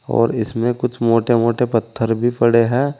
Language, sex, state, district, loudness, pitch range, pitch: Hindi, male, Uttar Pradesh, Saharanpur, -17 LUFS, 115-120 Hz, 115 Hz